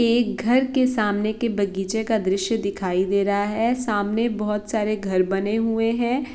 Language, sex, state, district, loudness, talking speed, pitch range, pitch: Hindi, female, Bihar, Saran, -22 LUFS, 190 wpm, 200-235 Hz, 215 Hz